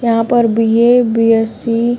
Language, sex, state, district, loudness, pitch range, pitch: Hindi, female, Uttar Pradesh, Varanasi, -12 LUFS, 225-240 Hz, 230 Hz